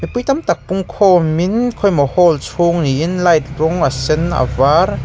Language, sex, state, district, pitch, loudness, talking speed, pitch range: Mizo, male, Mizoram, Aizawl, 170 Hz, -14 LUFS, 155 wpm, 155-190 Hz